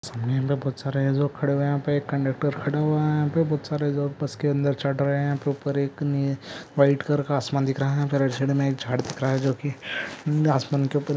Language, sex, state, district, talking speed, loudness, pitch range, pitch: Hindi, male, Andhra Pradesh, Visakhapatnam, 215 wpm, -25 LUFS, 135-145 Hz, 140 Hz